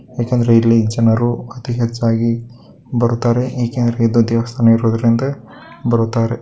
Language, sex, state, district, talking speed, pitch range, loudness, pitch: Kannada, male, Karnataka, Bellary, 105 wpm, 115-120 Hz, -16 LUFS, 115 Hz